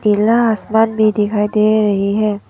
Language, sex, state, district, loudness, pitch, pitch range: Hindi, female, Arunachal Pradesh, Papum Pare, -14 LUFS, 215 Hz, 210-220 Hz